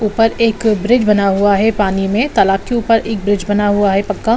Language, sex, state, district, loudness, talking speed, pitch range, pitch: Hindi, female, Bihar, Saran, -14 LUFS, 235 wpm, 200-225 Hz, 205 Hz